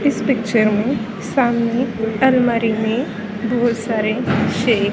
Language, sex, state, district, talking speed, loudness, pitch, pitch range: Hindi, female, Haryana, Jhajjar, 110 wpm, -18 LUFS, 230 Hz, 220-240 Hz